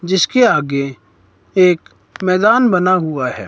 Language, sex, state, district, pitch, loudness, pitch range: Hindi, male, Himachal Pradesh, Shimla, 175 Hz, -14 LUFS, 130-185 Hz